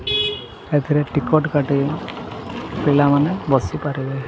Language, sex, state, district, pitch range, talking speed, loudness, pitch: Odia, male, Odisha, Sambalpur, 135-150 Hz, 70 wpm, -19 LUFS, 145 Hz